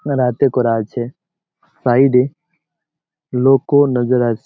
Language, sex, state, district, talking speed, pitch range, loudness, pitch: Bengali, male, West Bengal, Malda, 135 wpm, 125-155 Hz, -15 LUFS, 135 Hz